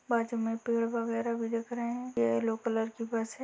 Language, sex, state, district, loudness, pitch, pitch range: Hindi, female, Uttar Pradesh, Ghazipur, -32 LUFS, 230 Hz, 225-235 Hz